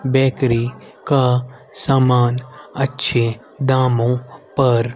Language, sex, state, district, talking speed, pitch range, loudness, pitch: Hindi, male, Haryana, Rohtak, 75 wpm, 120-135 Hz, -17 LUFS, 130 Hz